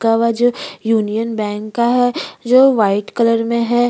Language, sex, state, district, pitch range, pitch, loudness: Hindi, female, Chhattisgarh, Bastar, 220-245 Hz, 230 Hz, -16 LUFS